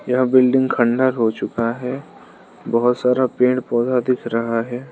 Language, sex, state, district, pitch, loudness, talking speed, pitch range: Hindi, male, Arunachal Pradesh, Lower Dibang Valley, 125 Hz, -18 LUFS, 160 wpm, 120-130 Hz